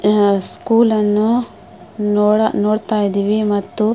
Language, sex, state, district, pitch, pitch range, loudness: Kannada, female, Karnataka, Mysore, 210 Hz, 205-220 Hz, -16 LUFS